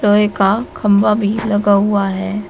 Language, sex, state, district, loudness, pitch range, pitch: Hindi, female, Uttar Pradesh, Shamli, -15 LUFS, 200-210 Hz, 205 Hz